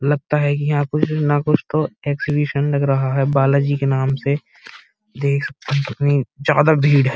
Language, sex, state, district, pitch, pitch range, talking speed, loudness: Hindi, male, Uttar Pradesh, Muzaffarnagar, 145 Hz, 135-145 Hz, 195 wpm, -18 LUFS